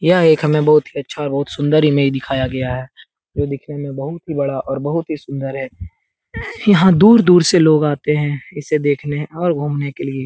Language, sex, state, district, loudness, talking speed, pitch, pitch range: Hindi, male, Bihar, Saran, -16 LUFS, 200 wpm, 145 Hz, 135-155 Hz